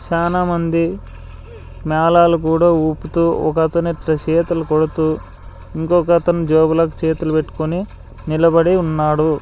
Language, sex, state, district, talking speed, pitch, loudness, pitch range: Telugu, male, Andhra Pradesh, Sri Satya Sai, 95 wpm, 160 Hz, -16 LUFS, 155-170 Hz